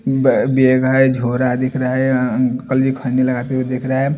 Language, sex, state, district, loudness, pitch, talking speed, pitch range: Hindi, male, Bihar, Katihar, -16 LUFS, 130 Hz, 215 wpm, 125-130 Hz